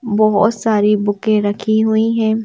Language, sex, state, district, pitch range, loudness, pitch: Hindi, female, Madhya Pradesh, Bhopal, 210-220 Hz, -15 LUFS, 215 Hz